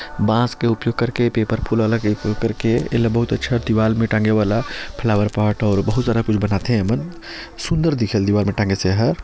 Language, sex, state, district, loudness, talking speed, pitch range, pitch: Chhattisgarhi, male, Chhattisgarh, Sarguja, -19 LUFS, 215 wpm, 105-120 Hz, 110 Hz